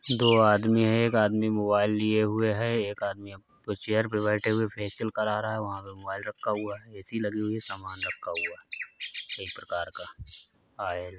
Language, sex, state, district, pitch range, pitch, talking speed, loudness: Hindi, male, Bihar, Gopalganj, 105-110 Hz, 110 Hz, 205 wpm, -28 LUFS